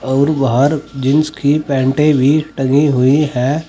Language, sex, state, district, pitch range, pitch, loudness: Hindi, male, Uttar Pradesh, Saharanpur, 135-150 Hz, 140 Hz, -14 LUFS